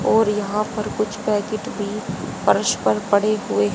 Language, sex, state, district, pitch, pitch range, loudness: Hindi, female, Haryana, Charkhi Dadri, 210 Hz, 205-215 Hz, -21 LUFS